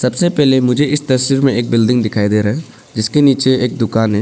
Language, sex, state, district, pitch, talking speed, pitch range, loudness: Hindi, male, Arunachal Pradesh, Papum Pare, 125 Hz, 240 wpm, 110-135 Hz, -14 LUFS